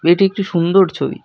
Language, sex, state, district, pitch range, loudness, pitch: Bengali, male, West Bengal, North 24 Parganas, 170-195 Hz, -15 LUFS, 180 Hz